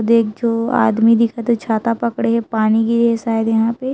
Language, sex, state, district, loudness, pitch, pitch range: Chhattisgarhi, female, Chhattisgarh, Raigarh, -16 LUFS, 230 Hz, 225-235 Hz